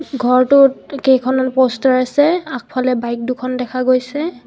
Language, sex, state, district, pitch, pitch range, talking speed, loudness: Assamese, female, Assam, Kamrup Metropolitan, 255 Hz, 255-275 Hz, 120 wpm, -15 LUFS